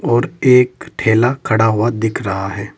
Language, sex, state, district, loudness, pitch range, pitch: Hindi, male, Uttar Pradesh, Saharanpur, -15 LUFS, 110-125 Hz, 110 Hz